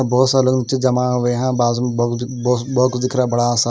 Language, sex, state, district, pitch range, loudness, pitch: Hindi, male, Bihar, West Champaran, 120-130 Hz, -17 LUFS, 125 Hz